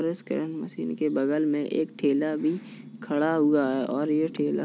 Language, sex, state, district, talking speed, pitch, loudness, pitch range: Hindi, female, Uttar Pradesh, Jalaun, 195 wpm, 150 Hz, -26 LUFS, 145-160 Hz